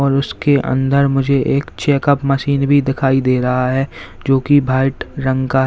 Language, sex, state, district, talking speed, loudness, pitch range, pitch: Hindi, male, Uttar Pradesh, Lalitpur, 180 wpm, -15 LUFS, 130-140 Hz, 135 Hz